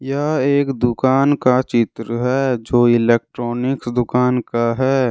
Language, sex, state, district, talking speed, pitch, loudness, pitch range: Hindi, male, Jharkhand, Deoghar, 140 wpm, 125 Hz, -17 LUFS, 120-135 Hz